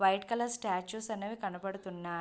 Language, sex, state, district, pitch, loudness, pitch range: Telugu, female, Andhra Pradesh, Visakhapatnam, 195 Hz, -36 LUFS, 185-220 Hz